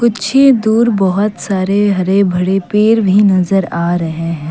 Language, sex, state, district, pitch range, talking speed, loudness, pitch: Hindi, female, Assam, Kamrup Metropolitan, 185-215 Hz, 160 wpm, -12 LUFS, 195 Hz